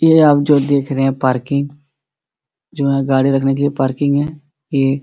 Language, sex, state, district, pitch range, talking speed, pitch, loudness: Hindi, male, Bihar, Supaul, 135-145 Hz, 200 wpm, 140 Hz, -15 LUFS